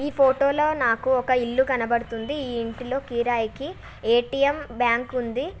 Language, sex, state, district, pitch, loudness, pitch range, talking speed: Telugu, female, Telangana, Nalgonda, 250 Hz, -23 LUFS, 235-275 Hz, 150 wpm